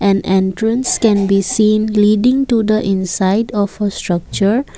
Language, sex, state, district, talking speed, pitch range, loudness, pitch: English, female, Assam, Kamrup Metropolitan, 150 wpm, 195-220 Hz, -15 LUFS, 210 Hz